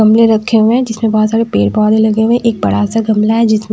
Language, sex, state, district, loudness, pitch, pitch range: Hindi, female, Haryana, Charkhi Dadri, -11 LUFS, 220 Hz, 215-230 Hz